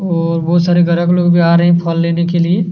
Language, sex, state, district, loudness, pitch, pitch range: Hindi, male, Chhattisgarh, Kabirdham, -12 LUFS, 170 Hz, 170-175 Hz